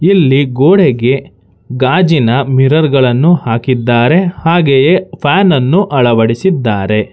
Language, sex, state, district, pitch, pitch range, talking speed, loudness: Kannada, male, Karnataka, Bangalore, 135 Hz, 120-170 Hz, 75 wpm, -10 LUFS